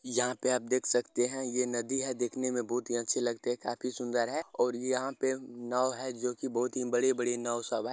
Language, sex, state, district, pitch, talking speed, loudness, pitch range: Hindi, male, Bihar, Sitamarhi, 125 Hz, 240 wpm, -32 LUFS, 120-130 Hz